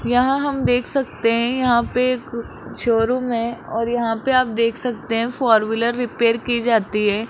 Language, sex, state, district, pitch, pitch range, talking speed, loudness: Hindi, male, Rajasthan, Jaipur, 235 Hz, 230-250 Hz, 190 wpm, -19 LUFS